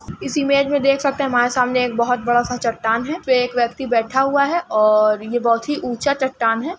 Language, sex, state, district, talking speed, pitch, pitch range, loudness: Hindi, female, Uttar Pradesh, Etah, 240 wpm, 250 Hz, 235-280 Hz, -18 LUFS